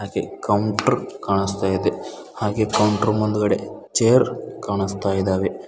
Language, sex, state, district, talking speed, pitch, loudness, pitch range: Kannada, male, Karnataka, Bidar, 105 wpm, 105 Hz, -21 LUFS, 100-105 Hz